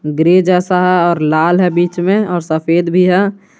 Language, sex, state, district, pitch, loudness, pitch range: Hindi, male, Jharkhand, Garhwa, 175 Hz, -12 LUFS, 170-185 Hz